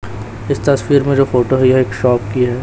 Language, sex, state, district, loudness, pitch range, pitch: Hindi, male, Chhattisgarh, Raipur, -14 LUFS, 115-135 Hz, 125 Hz